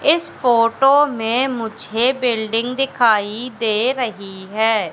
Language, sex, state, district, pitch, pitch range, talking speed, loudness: Hindi, female, Madhya Pradesh, Katni, 235 Hz, 220-260 Hz, 110 wpm, -18 LUFS